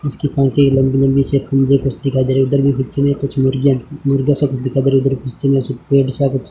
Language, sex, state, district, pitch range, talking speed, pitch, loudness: Hindi, male, Rajasthan, Bikaner, 135-140 Hz, 250 wpm, 135 Hz, -15 LUFS